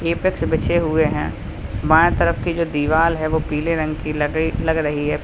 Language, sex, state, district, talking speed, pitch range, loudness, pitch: Hindi, male, Uttar Pradesh, Lalitpur, 205 wpm, 150-165 Hz, -19 LUFS, 160 Hz